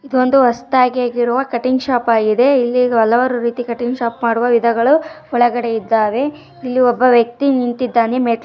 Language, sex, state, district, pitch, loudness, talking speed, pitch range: Kannada, female, Karnataka, Dharwad, 245 Hz, -15 LUFS, 115 wpm, 235-255 Hz